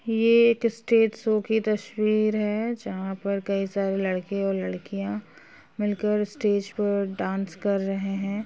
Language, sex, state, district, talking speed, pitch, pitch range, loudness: Hindi, female, Uttar Pradesh, Jalaun, 150 wpm, 205 Hz, 195-215 Hz, -25 LUFS